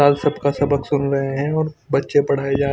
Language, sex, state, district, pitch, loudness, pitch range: Hindi, male, Chandigarh, Chandigarh, 140 Hz, -19 LUFS, 140-145 Hz